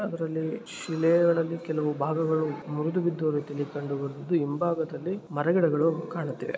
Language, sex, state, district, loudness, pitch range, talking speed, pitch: Kannada, male, Karnataka, Shimoga, -28 LUFS, 150-170 Hz, 110 wpm, 160 Hz